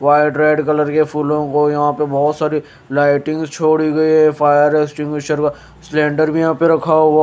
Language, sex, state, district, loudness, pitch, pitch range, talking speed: Hindi, male, Maharashtra, Mumbai Suburban, -15 LUFS, 150 Hz, 150-155 Hz, 200 wpm